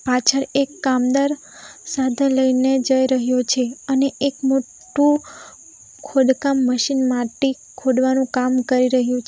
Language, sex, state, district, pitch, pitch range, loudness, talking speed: Gujarati, female, Gujarat, Valsad, 265 Hz, 255-275 Hz, -19 LUFS, 125 wpm